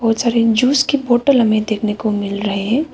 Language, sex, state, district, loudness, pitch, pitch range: Hindi, female, Arunachal Pradesh, Papum Pare, -16 LUFS, 225 Hz, 215-250 Hz